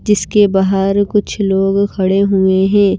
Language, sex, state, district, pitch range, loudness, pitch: Hindi, female, Himachal Pradesh, Shimla, 195-205 Hz, -13 LUFS, 195 Hz